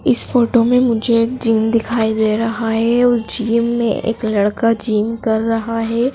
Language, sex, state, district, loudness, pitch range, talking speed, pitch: Hindi, female, Madhya Pradesh, Dhar, -16 LUFS, 225-235 Hz, 185 wpm, 230 Hz